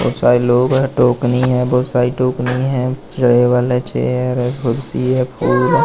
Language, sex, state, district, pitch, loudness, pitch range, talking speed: Hindi, male, Madhya Pradesh, Katni, 125 Hz, -15 LUFS, 125-130 Hz, 175 wpm